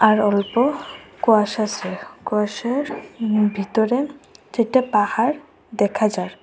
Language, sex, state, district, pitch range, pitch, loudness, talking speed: Bengali, female, Assam, Hailakandi, 205-250 Hz, 220 Hz, -21 LUFS, 105 wpm